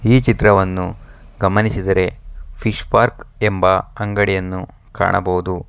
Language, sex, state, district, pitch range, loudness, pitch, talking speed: Kannada, male, Karnataka, Bangalore, 90-105 Hz, -17 LUFS, 95 Hz, 85 wpm